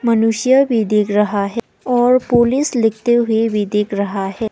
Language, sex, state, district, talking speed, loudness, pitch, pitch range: Hindi, female, Arunachal Pradesh, Papum Pare, 175 wpm, -16 LUFS, 225 Hz, 210-240 Hz